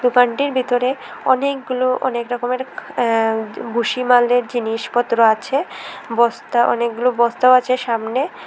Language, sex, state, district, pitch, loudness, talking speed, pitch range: Bengali, female, Tripura, West Tripura, 245 Hz, -18 LUFS, 105 wpm, 235-255 Hz